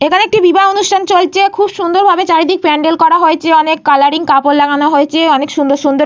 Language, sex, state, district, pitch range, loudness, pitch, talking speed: Bengali, female, West Bengal, Paschim Medinipur, 290-370 Hz, -10 LUFS, 325 Hz, 210 wpm